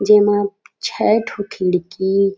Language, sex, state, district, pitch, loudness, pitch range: Chhattisgarhi, female, Chhattisgarh, Raigarh, 200 Hz, -18 LUFS, 190-205 Hz